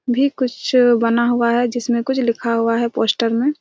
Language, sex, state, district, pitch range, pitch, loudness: Hindi, female, Chhattisgarh, Raigarh, 235-255 Hz, 240 Hz, -17 LUFS